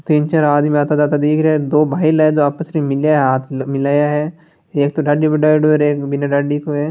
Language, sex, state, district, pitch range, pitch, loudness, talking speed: Marwari, male, Rajasthan, Nagaur, 145-155 Hz, 150 Hz, -15 LUFS, 260 wpm